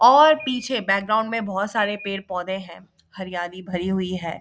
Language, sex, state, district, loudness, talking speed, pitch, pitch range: Hindi, female, Bihar, Jahanabad, -22 LUFS, 175 wpm, 195 Hz, 185-225 Hz